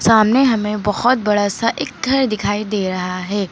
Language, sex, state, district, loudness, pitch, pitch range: Hindi, female, Uttar Pradesh, Lucknow, -17 LUFS, 210 Hz, 205-240 Hz